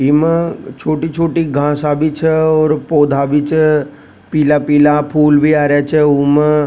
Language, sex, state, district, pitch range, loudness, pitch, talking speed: Rajasthani, male, Rajasthan, Nagaur, 145-155 Hz, -13 LUFS, 150 Hz, 170 wpm